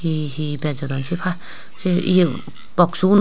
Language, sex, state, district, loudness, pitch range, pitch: Chakma, female, Tripura, Unakoti, -20 LUFS, 150-185 Hz, 175 Hz